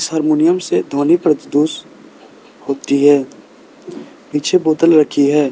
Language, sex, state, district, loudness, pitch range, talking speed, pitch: Hindi, male, Arunachal Pradesh, Lower Dibang Valley, -14 LUFS, 145-160 Hz, 110 wpm, 150 Hz